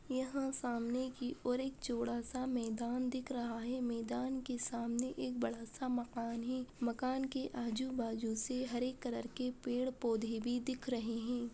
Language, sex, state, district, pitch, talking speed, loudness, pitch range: Hindi, female, Bihar, Araria, 245 Hz, 170 wpm, -39 LUFS, 235-255 Hz